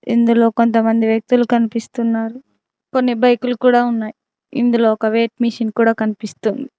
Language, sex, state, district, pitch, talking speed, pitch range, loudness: Telugu, female, Telangana, Mahabubabad, 230 Hz, 130 wpm, 225-245 Hz, -16 LUFS